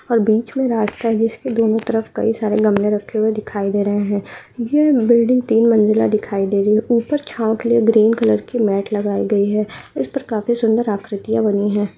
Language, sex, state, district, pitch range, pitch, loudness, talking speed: Marwari, female, Rajasthan, Nagaur, 210-230 Hz, 220 Hz, -17 LUFS, 215 wpm